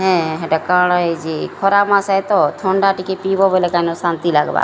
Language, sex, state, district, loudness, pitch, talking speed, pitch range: Odia, female, Odisha, Sambalpur, -16 LUFS, 180 Hz, 205 wpm, 170-195 Hz